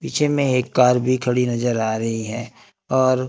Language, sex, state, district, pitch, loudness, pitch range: Hindi, male, Maharashtra, Gondia, 125 Hz, -20 LUFS, 120-130 Hz